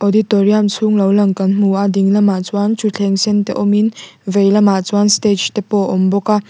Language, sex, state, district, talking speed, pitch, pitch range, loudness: Mizo, female, Mizoram, Aizawl, 220 wpm, 205 Hz, 195-210 Hz, -14 LUFS